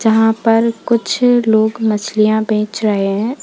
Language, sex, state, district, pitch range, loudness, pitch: Hindi, female, Uttar Pradesh, Lalitpur, 215-230 Hz, -14 LUFS, 220 Hz